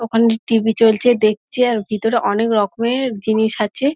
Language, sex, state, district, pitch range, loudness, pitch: Bengali, female, West Bengal, Dakshin Dinajpur, 215-235 Hz, -17 LUFS, 225 Hz